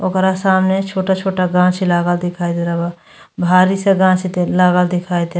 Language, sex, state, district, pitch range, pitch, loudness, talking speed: Bhojpuri, female, Uttar Pradesh, Gorakhpur, 175-190 Hz, 180 Hz, -15 LUFS, 175 wpm